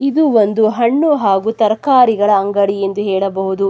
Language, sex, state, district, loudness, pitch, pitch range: Kannada, female, Karnataka, Chamarajanagar, -14 LUFS, 210 Hz, 195-235 Hz